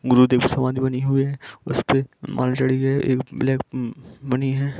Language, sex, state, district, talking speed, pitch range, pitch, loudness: Hindi, male, Jharkhand, Sahebganj, 185 wpm, 125-135 Hz, 130 Hz, -22 LUFS